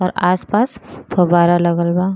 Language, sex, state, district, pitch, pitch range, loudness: Bhojpuri, female, Uttar Pradesh, Gorakhpur, 180 Hz, 175-190 Hz, -16 LUFS